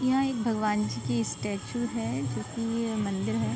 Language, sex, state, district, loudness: Hindi, female, Uttar Pradesh, Ghazipur, -30 LUFS